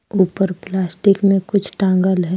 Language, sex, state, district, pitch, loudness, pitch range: Hindi, female, Jharkhand, Deoghar, 190 Hz, -17 LUFS, 185-195 Hz